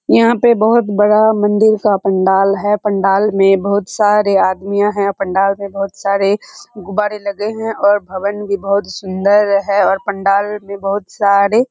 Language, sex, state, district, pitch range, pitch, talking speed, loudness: Hindi, female, Bihar, Kishanganj, 195-210 Hz, 200 Hz, 170 wpm, -14 LUFS